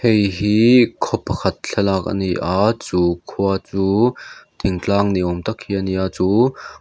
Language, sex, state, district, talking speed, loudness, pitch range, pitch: Mizo, male, Mizoram, Aizawl, 185 wpm, -18 LUFS, 95-110 Hz, 100 Hz